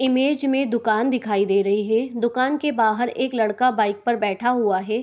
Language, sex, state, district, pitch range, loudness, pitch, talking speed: Hindi, female, Bihar, Begusarai, 215-255 Hz, -21 LUFS, 235 Hz, 200 wpm